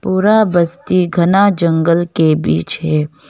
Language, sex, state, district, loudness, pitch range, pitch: Hindi, female, Arunachal Pradesh, Longding, -13 LUFS, 155-185 Hz, 170 Hz